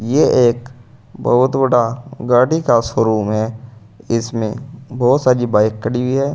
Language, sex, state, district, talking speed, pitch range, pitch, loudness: Hindi, male, Uttar Pradesh, Saharanpur, 130 wpm, 115-130 Hz, 120 Hz, -16 LUFS